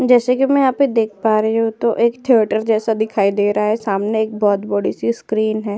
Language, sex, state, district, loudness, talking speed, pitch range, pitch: Hindi, female, Uttar Pradesh, Jyotiba Phule Nagar, -17 LUFS, 250 wpm, 210-235 Hz, 220 Hz